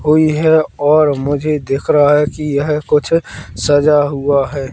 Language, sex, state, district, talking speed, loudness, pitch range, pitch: Hindi, male, Madhya Pradesh, Katni, 165 wpm, -14 LUFS, 140-150 Hz, 145 Hz